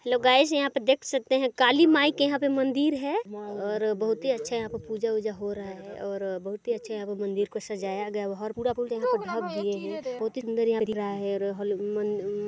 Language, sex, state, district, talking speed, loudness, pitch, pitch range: Hindi, female, Chhattisgarh, Balrampur, 260 wpm, -27 LUFS, 220 Hz, 205-260 Hz